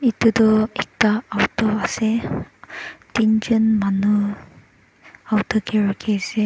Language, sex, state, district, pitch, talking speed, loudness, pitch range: Nagamese, male, Nagaland, Dimapur, 215 Hz, 95 wpm, -20 LUFS, 210-220 Hz